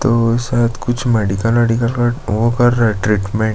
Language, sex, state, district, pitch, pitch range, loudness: Hindi, male, Chhattisgarh, Jashpur, 115 Hz, 110-120 Hz, -16 LUFS